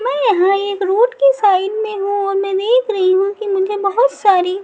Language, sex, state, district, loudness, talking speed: Hindi, female, Maharashtra, Mumbai Suburban, -15 LUFS, 220 wpm